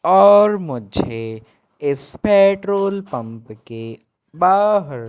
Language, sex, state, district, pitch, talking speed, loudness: Hindi, male, Madhya Pradesh, Katni, 140 Hz, 80 wpm, -16 LUFS